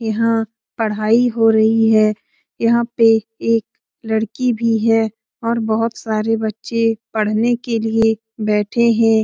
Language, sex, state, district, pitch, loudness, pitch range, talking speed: Hindi, female, Bihar, Lakhisarai, 225 Hz, -17 LUFS, 220-230 Hz, 130 wpm